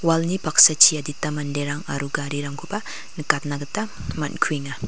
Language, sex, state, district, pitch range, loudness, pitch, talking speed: Garo, female, Meghalaya, West Garo Hills, 145-165 Hz, -21 LUFS, 150 Hz, 125 wpm